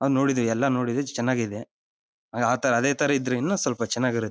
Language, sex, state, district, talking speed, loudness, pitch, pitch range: Kannada, male, Karnataka, Bellary, 180 wpm, -24 LUFS, 125 Hz, 115-135 Hz